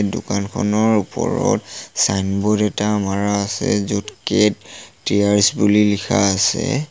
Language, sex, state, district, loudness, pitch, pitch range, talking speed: Assamese, male, Assam, Sonitpur, -18 LUFS, 105 Hz, 100-105 Hz, 105 wpm